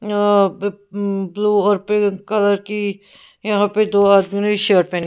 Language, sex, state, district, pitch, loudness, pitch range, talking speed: Hindi, female, Punjab, Pathankot, 205 Hz, -17 LUFS, 200-210 Hz, 140 wpm